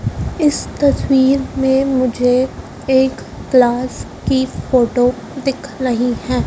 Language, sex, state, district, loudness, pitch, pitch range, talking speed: Hindi, male, Madhya Pradesh, Dhar, -16 LUFS, 260 Hz, 250-270 Hz, 100 wpm